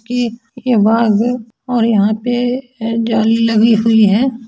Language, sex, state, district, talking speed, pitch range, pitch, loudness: Bhojpuri, male, Bihar, Saran, 145 wpm, 225-245 Hz, 230 Hz, -14 LUFS